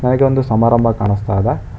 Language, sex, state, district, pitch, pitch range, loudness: Kannada, male, Karnataka, Bangalore, 115 Hz, 105-125 Hz, -15 LUFS